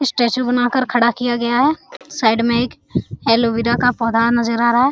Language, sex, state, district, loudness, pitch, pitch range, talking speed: Hindi, female, Jharkhand, Sahebganj, -17 LUFS, 240 Hz, 235-250 Hz, 205 wpm